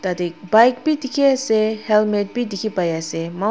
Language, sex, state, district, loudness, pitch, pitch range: Nagamese, female, Nagaland, Dimapur, -19 LUFS, 215 Hz, 180-240 Hz